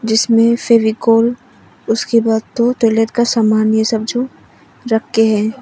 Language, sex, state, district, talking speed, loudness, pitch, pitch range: Hindi, female, Arunachal Pradesh, Papum Pare, 130 wpm, -14 LUFS, 225 Hz, 220-235 Hz